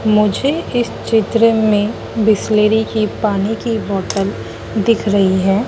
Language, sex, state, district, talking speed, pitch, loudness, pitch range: Hindi, female, Madhya Pradesh, Dhar, 125 wpm, 215 Hz, -16 LUFS, 200-225 Hz